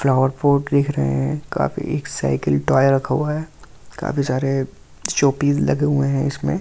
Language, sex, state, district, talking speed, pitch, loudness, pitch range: Hindi, male, Delhi, New Delhi, 190 wpm, 140 Hz, -20 LUFS, 130-145 Hz